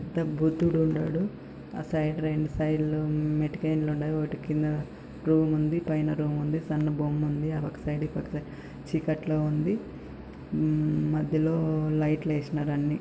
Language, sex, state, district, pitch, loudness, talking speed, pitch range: Telugu, female, Andhra Pradesh, Anantapur, 155 Hz, -28 LUFS, 130 wpm, 150-155 Hz